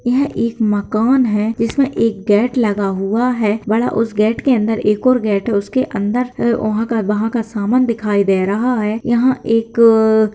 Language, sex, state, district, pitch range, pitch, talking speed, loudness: Hindi, female, Bihar, Jahanabad, 210-240 Hz, 225 Hz, 190 wpm, -16 LUFS